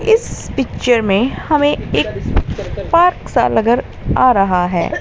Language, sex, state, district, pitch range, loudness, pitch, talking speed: Hindi, female, Haryana, Jhajjar, 200-300 Hz, -15 LUFS, 245 Hz, 130 wpm